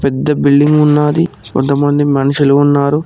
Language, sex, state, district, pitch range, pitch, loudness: Telugu, male, Telangana, Mahabubabad, 140-150 Hz, 145 Hz, -11 LUFS